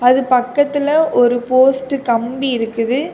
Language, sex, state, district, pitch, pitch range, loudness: Tamil, female, Tamil Nadu, Kanyakumari, 255 Hz, 245-275 Hz, -15 LUFS